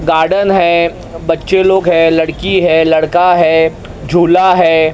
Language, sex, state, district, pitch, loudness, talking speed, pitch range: Hindi, male, Maharashtra, Mumbai Suburban, 165 Hz, -10 LUFS, 135 wpm, 160-180 Hz